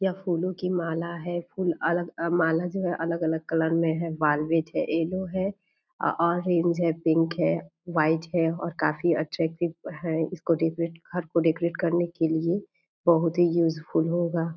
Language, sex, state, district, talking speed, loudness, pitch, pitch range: Hindi, female, Bihar, Purnia, 170 wpm, -26 LUFS, 170 Hz, 165-175 Hz